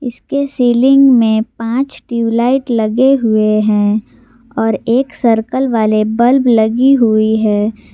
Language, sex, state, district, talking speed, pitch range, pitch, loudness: Hindi, female, Jharkhand, Garhwa, 120 wpm, 220-260 Hz, 230 Hz, -12 LUFS